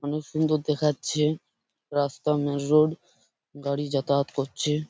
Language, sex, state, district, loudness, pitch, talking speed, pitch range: Bengali, male, West Bengal, Purulia, -26 LUFS, 150 Hz, 110 wpm, 140-155 Hz